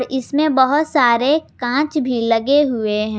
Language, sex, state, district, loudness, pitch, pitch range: Hindi, female, Jharkhand, Garhwa, -17 LUFS, 265 Hz, 235-295 Hz